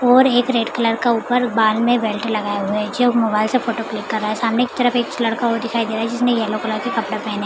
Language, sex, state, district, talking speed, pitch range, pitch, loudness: Hindi, female, Bihar, Madhepura, 300 wpm, 215-245 Hz, 230 Hz, -18 LUFS